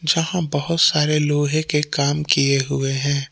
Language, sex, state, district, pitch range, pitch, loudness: Hindi, male, Jharkhand, Palamu, 140-155 Hz, 150 Hz, -19 LUFS